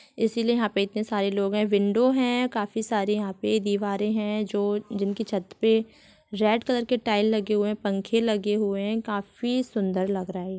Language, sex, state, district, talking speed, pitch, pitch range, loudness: Hindi, female, Bihar, Supaul, 205 wpm, 210 Hz, 200-225 Hz, -25 LUFS